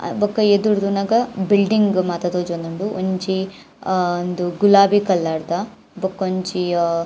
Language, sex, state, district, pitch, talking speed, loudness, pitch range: Tulu, female, Karnataka, Dakshina Kannada, 190 Hz, 125 wpm, -19 LUFS, 175-205 Hz